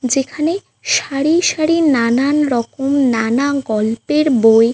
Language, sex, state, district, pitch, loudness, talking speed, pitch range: Bengali, female, West Bengal, Paschim Medinipur, 275 Hz, -15 LUFS, 115 wpm, 235-300 Hz